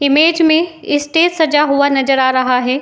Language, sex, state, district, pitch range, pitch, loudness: Hindi, female, Uttar Pradesh, Jyotiba Phule Nagar, 270-325 Hz, 290 Hz, -13 LUFS